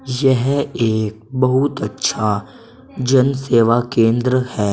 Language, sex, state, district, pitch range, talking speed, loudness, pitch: Hindi, male, Uttar Pradesh, Saharanpur, 110-130 Hz, 100 wpm, -17 LUFS, 125 Hz